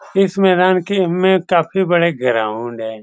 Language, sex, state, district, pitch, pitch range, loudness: Hindi, male, Bihar, Saran, 180 Hz, 125-190 Hz, -15 LUFS